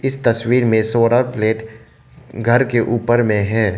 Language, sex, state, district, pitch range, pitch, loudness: Hindi, male, Arunachal Pradesh, Lower Dibang Valley, 110-120 Hz, 115 Hz, -16 LUFS